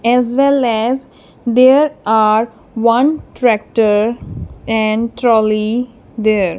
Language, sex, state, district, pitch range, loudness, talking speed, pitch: English, female, Punjab, Kapurthala, 220-250 Hz, -14 LUFS, 90 wpm, 230 Hz